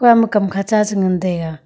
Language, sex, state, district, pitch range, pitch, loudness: Wancho, female, Arunachal Pradesh, Longding, 180-215 Hz, 195 Hz, -16 LUFS